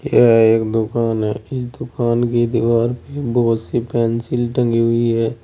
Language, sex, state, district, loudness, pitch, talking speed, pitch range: Hindi, male, Uttar Pradesh, Saharanpur, -17 LUFS, 115 Hz, 165 wpm, 115-120 Hz